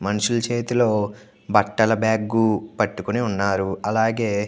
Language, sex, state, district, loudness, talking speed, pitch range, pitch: Telugu, male, Andhra Pradesh, Anantapur, -21 LUFS, 105 wpm, 100-115 Hz, 105 Hz